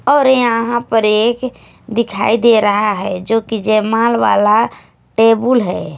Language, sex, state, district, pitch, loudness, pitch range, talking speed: Hindi, female, Punjab, Kapurthala, 225 Hz, -14 LUFS, 215-235 Hz, 150 wpm